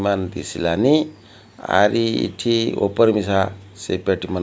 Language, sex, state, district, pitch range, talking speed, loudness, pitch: Odia, male, Odisha, Malkangiri, 95-115 Hz, 120 wpm, -19 LUFS, 105 Hz